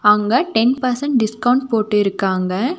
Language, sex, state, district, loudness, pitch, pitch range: Tamil, female, Tamil Nadu, Nilgiris, -17 LUFS, 225 Hz, 210-250 Hz